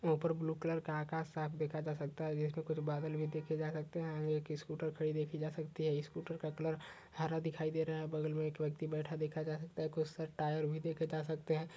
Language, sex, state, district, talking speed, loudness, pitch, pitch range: Hindi, male, Uttar Pradesh, Etah, 255 wpm, -40 LUFS, 155 Hz, 155-160 Hz